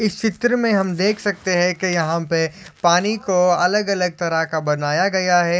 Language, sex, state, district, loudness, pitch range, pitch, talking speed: Hindi, male, Maharashtra, Solapur, -19 LUFS, 170-200 Hz, 180 Hz, 205 wpm